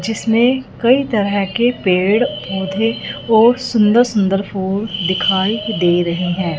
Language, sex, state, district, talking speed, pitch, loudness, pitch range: Hindi, female, Punjab, Fazilka, 130 wpm, 205 Hz, -16 LUFS, 190-230 Hz